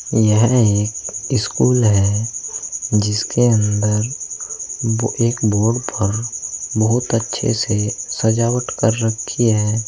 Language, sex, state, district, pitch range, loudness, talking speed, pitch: Hindi, male, Uttar Pradesh, Saharanpur, 105-115 Hz, -18 LUFS, 105 wpm, 110 Hz